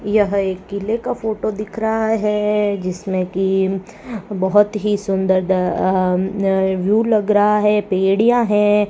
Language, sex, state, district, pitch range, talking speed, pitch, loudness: Hindi, female, Rajasthan, Bikaner, 190-210 Hz, 140 wpm, 205 Hz, -18 LUFS